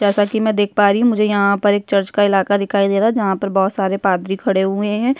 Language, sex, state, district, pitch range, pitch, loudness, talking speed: Hindi, female, Uttarakhand, Tehri Garhwal, 195-210 Hz, 200 Hz, -16 LUFS, 300 wpm